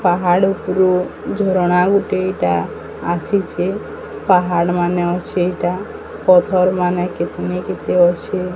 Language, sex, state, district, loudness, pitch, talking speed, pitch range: Odia, female, Odisha, Sambalpur, -17 LUFS, 180 Hz, 100 wpm, 175-190 Hz